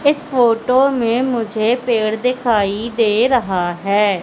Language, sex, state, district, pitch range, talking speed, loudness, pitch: Hindi, female, Madhya Pradesh, Katni, 210-250 Hz, 125 wpm, -16 LUFS, 230 Hz